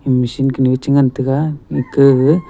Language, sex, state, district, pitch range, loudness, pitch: Wancho, male, Arunachal Pradesh, Longding, 130-140 Hz, -14 LUFS, 135 Hz